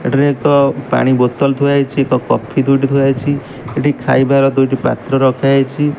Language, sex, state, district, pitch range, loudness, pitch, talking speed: Odia, male, Odisha, Malkangiri, 130-140 Hz, -14 LUFS, 135 Hz, 150 wpm